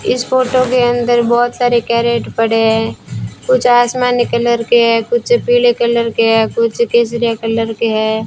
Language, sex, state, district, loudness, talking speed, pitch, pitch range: Hindi, female, Rajasthan, Bikaner, -13 LUFS, 165 wpm, 235 Hz, 230-245 Hz